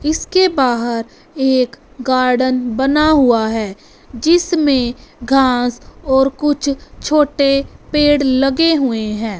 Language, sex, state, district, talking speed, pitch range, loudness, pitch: Hindi, female, Punjab, Fazilka, 100 wpm, 245-295 Hz, -15 LUFS, 270 Hz